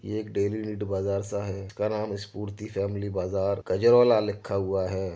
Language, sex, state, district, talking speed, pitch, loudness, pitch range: Hindi, male, Uttar Pradesh, Jyotiba Phule Nagar, 185 wpm, 100 Hz, -27 LUFS, 100-105 Hz